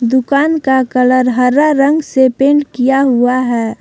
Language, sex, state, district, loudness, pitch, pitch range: Hindi, female, Jharkhand, Palamu, -12 LUFS, 260 Hz, 250-280 Hz